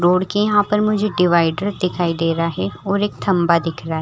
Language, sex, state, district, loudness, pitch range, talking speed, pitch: Hindi, female, Chhattisgarh, Rajnandgaon, -18 LUFS, 165-205 Hz, 240 wpm, 180 Hz